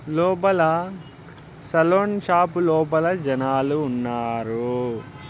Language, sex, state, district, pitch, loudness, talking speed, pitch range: Telugu, male, Andhra Pradesh, Anantapur, 155 Hz, -21 LUFS, 70 wpm, 135-175 Hz